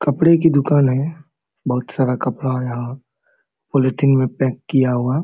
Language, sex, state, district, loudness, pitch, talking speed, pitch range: Hindi, male, Jharkhand, Sahebganj, -18 LUFS, 135 Hz, 160 wpm, 130-145 Hz